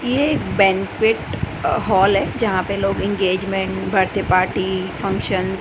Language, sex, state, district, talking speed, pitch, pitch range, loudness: Hindi, female, Gujarat, Gandhinagar, 140 wpm, 195 Hz, 190-200 Hz, -19 LUFS